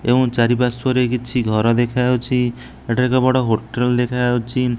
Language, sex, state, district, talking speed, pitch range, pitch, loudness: Odia, male, Odisha, Nuapada, 125 wpm, 120-125 Hz, 125 Hz, -18 LUFS